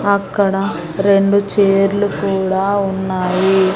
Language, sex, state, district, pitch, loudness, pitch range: Telugu, female, Andhra Pradesh, Annamaya, 195 Hz, -15 LUFS, 190-200 Hz